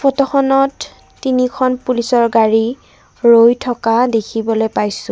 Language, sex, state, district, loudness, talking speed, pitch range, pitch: Assamese, female, Assam, Kamrup Metropolitan, -14 LUFS, 95 wpm, 225-260 Hz, 245 Hz